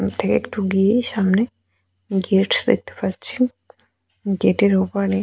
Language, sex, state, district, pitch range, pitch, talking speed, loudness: Bengali, female, West Bengal, Jalpaiguri, 190-210 Hz, 195 Hz, 125 wpm, -20 LUFS